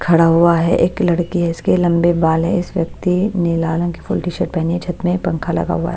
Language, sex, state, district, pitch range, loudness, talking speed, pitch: Hindi, female, Bihar, Patna, 165-175 Hz, -17 LUFS, 260 wpm, 170 Hz